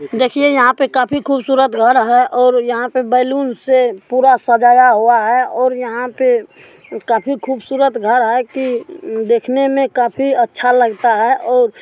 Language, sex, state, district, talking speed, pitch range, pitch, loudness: Maithili, female, Bihar, Supaul, 160 wpm, 240-270 Hz, 250 Hz, -13 LUFS